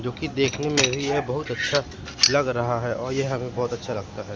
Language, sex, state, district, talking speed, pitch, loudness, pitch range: Hindi, male, Madhya Pradesh, Katni, 245 wpm, 130 Hz, -24 LUFS, 120-140 Hz